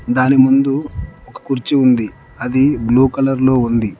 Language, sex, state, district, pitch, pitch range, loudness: Telugu, male, Telangana, Mahabubabad, 130 Hz, 125-135 Hz, -14 LUFS